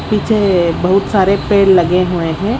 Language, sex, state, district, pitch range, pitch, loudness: Hindi, female, Odisha, Khordha, 175-205 Hz, 195 Hz, -13 LUFS